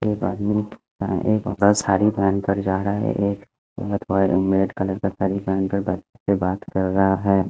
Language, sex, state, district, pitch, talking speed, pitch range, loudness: Hindi, male, Punjab, Fazilka, 100 Hz, 160 wpm, 95-100 Hz, -21 LUFS